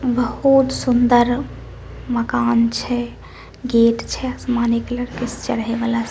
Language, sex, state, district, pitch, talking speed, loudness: Maithili, female, Bihar, Samastipur, 235 Hz, 110 wpm, -19 LUFS